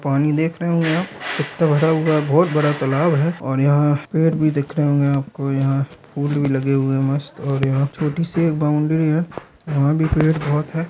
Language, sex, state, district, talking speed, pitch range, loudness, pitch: Hindi, male, Bihar, Darbhanga, 210 wpm, 140-160 Hz, -19 LUFS, 150 Hz